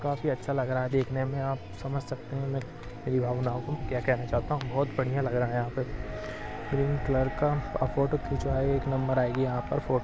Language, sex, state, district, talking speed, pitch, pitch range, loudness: Hindi, male, Chhattisgarh, Balrampur, 225 wpm, 130 Hz, 125-140 Hz, -30 LUFS